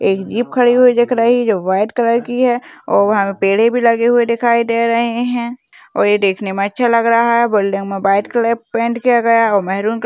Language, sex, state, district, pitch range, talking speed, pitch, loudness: Hindi, female, Maharashtra, Chandrapur, 205-240 Hz, 225 wpm, 230 Hz, -14 LUFS